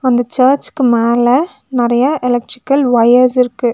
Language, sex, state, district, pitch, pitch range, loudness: Tamil, female, Tamil Nadu, Nilgiris, 250 Hz, 240-260 Hz, -12 LUFS